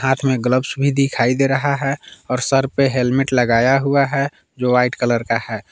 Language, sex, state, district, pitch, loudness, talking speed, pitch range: Hindi, male, Jharkhand, Palamu, 130 Hz, -17 LUFS, 210 wpm, 125-135 Hz